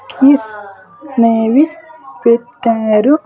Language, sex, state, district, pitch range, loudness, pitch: Telugu, male, Andhra Pradesh, Sri Satya Sai, 215-285 Hz, -13 LUFS, 235 Hz